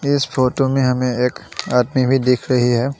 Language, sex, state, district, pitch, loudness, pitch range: Hindi, male, Assam, Sonitpur, 130 Hz, -17 LUFS, 125-135 Hz